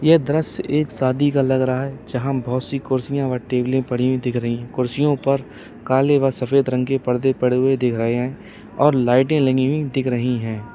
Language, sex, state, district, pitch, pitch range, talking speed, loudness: Hindi, male, Uttar Pradesh, Lalitpur, 130 Hz, 125-140 Hz, 220 wpm, -19 LUFS